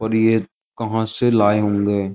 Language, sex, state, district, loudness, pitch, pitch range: Hindi, male, Uttar Pradesh, Jyotiba Phule Nagar, -18 LUFS, 110 Hz, 105-110 Hz